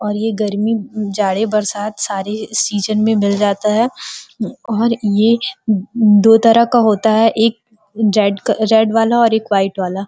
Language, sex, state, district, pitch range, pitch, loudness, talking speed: Hindi, female, Uttar Pradesh, Gorakhpur, 205-225 Hz, 215 Hz, -15 LUFS, 155 wpm